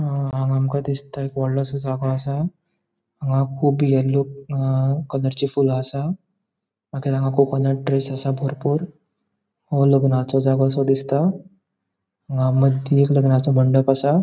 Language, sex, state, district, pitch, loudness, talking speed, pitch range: Konkani, male, Goa, North and South Goa, 135 Hz, -20 LUFS, 125 wpm, 135-140 Hz